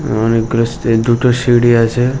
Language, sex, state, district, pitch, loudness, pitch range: Bengali, male, West Bengal, Jhargram, 120 Hz, -13 LUFS, 115-120 Hz